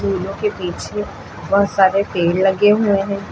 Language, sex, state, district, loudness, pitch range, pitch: Hindi, female, Uttar Pradesh, Lucknow, -17 LUFS, 190-205 Hz, 200 Hz